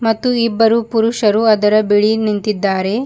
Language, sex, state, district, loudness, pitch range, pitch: Kannada, female, Karnataka, Bidar, -14 LUFS, 210-230 Hz, 220 Hz